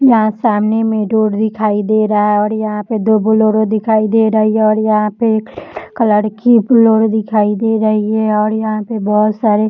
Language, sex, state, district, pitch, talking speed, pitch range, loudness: Hindi, female, Bihar, Jahanabad, 215 Hz, 210 wpm, 210-220 Hz, -13 LUFS